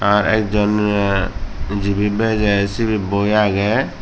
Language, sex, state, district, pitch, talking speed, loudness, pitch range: Chakma, male, Tripura, Dhalai, 105 Hz, 120 wpm, -17 LUFS, 100-105 Hz